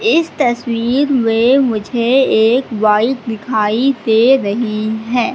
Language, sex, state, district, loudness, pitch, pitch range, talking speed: Hindi, female, Madhya Pradesh, Katni, -14 LUFS, 235 Hz, 220-260 Hz, 110 wpm